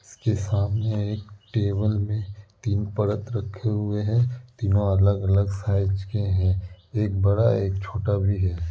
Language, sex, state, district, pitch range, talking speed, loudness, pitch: Hindi, male, Bihar, Kishanganj, 100-105 Hz, 145 wpm, -24 LUFS, 105 Hz